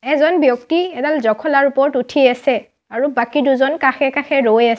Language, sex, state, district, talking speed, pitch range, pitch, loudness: Assamese, female, Assam, Sonitpur, 165 wpm, 250-295 Hz, 275 Hz, -15 LUFS